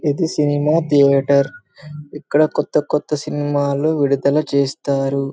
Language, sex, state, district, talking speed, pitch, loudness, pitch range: Telugu, male, Telangana, Karimnagar, 115 wpm, 145 Hz, -17 LUFS, 140-150 Hz